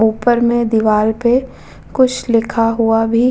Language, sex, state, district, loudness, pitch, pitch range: Hindi, female, Bihar, Vaishali, -14 LUFS, 230 Hz, 225-240 Hz